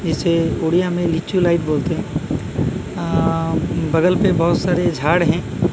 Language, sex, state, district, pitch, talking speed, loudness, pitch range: Hindi, male, Odisha, Malkangiri, 170 Hz, 145 wpm, -18 LUFS, 165-175 Hz